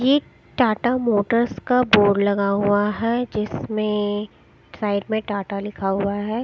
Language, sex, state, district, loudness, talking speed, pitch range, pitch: Hindi, female, Odisha, Sambalpur, -21 LUFS, 140 wpm, 200-235 Hz, 210 Hz